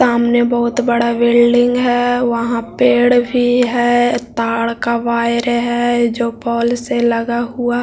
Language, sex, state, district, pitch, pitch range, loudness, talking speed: Hindi, male, Bihar, Jahanabad, 240 Hz, 235-245 Hz, -15 LUFS, 285 wpm